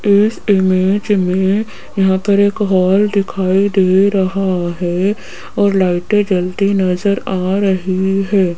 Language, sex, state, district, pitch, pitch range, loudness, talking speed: Hindi, female, Rajasthan, Jaipur, 195 Hz, 185-200 Hz, -14 LUFS, 125 wpm